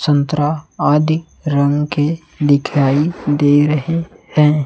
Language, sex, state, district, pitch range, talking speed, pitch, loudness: Hindi, male, Chhattisgarh, Raipur, 145-155 Hz, 105 wpm, 150 Hz, -16 LUFS